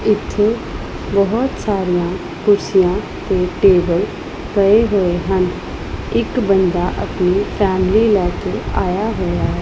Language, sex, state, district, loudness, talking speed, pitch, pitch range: Punjabi, female, Punjab, Pathankot, -17 LUFS, 105 wpm, 190 Hz, 180-205 Hz